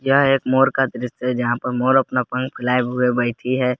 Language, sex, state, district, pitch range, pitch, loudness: Hindi, male, Jharkhand, Garhwa, 125-130 Hz, 125 Hz, -19 LUFS